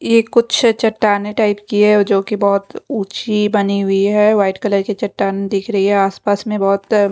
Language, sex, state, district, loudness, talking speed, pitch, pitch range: Hindi, female, Odisha, Khordha, -15 LUFS, 195 wpm, 205 Hz, 200-215 Hz